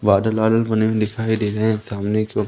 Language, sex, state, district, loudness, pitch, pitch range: Hindi, male, Madhya Pradesh, Umaria, -19 LUFS, 110 Hz, 105-110 Hz